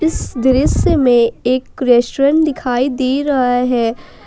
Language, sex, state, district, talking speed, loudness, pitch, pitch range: Hindi, female, Jharkhand, Ranchi, 125 wpm, -14 LUFS, 255 Hz, 245-275 Hz